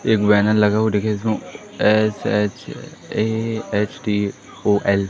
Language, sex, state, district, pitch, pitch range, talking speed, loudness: Hindi, male, Madhya Pradesh, Umaria, 105 Hz, 105-110 Hz, 80 wpm, -19 LUFS